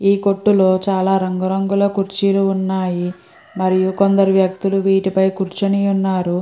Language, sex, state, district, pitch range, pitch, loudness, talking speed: Telugu, female, Andhra Pradesh, Guntur, 185-195 Hz, 195 Hz, -17 LUFS, 130 wpm